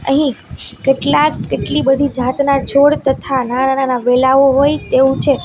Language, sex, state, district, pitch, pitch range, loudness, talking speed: Gujarati, female, Gujarat, Valsad, 270 Hz, 265-285 Hz, -14 LUFS, 130 wpm